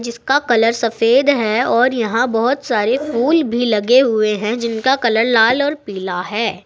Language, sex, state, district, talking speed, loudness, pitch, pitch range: Hindi, female, Uttar Pradesh, Saharanpur, 170 wpm, -16 LUFS, 235 Hz, 220-260 Hz